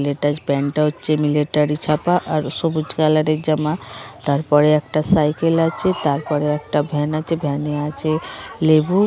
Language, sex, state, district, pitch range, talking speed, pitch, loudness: Bengali, female, West Bengal, Malda, 150-155 Hz, 130 wpm, 150 Hz, -19 LUFS